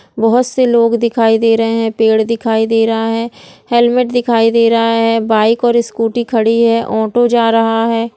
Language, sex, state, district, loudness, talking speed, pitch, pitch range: Hindi, female, Bihar, Jahanabad, -12 LUFS, 190 wpm, 230 Hz, 225-235 Hz